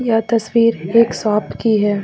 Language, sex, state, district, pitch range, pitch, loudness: Hindi, female, Jharkhand, Ranchi, 210-230 Hz, 225 Hz, -16 LUFS